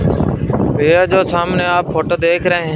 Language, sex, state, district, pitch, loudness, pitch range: Hindi, male, Punjab, Fazilka, 175 Hz, -14 LUFS, 170-180 Hz